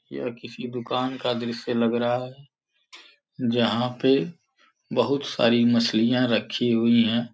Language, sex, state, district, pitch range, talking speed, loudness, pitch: Hindi, male, Uttar Pradesh, Gorakhpur, 120-125 Hz, 130 wpm, -24 LUFS, 120 Hz